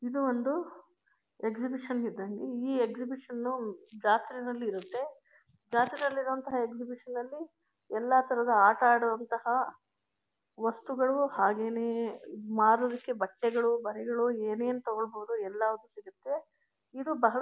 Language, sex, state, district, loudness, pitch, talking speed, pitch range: Kannada, female, Karnataka, Mysore, -31 LUFS, 240 Hz, 90 wpm, 225-260 Hz